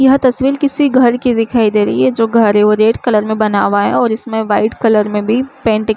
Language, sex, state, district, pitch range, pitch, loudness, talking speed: Hindi, female, Uttar Pradesh, Muzaffarnagar, 210-245 Hz, 220 Hz, -12 LUFS, 270 wpm